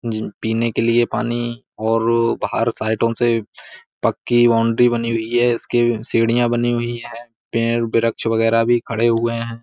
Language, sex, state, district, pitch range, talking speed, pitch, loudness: Hindi, male, Uttar Pradesh, Budaun, 115-120 Hz, 160 wpm, 115 Hz, -19 LUFS